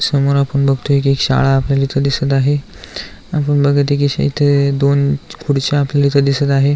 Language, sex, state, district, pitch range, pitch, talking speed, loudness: Marathi, male, Maharashtra, Aurangabad, 140-145 Hz, 140 Hz, 185 wpm, -15 LUFS